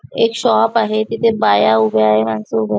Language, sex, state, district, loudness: Marathi, female, Maharashtra, Nagpur, -14 LUFS